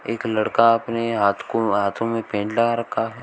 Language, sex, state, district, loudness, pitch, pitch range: Hindi, male, Uttar Pradesh, Shamli, -21 LUFS, 115 Hz, 105-115 Hz